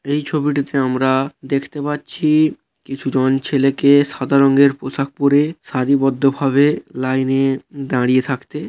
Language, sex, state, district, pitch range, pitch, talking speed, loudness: Bengali, male, West Bengal, Paschim Medinipur, 135-145 Hz, 135 Hz, 110 wpm, -17 LUFS